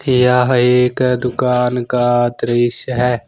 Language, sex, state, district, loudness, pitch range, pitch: Hindi, male, Jharkhand, Ranchi, -15 LUFS, 120-125 Hz, 125 Hz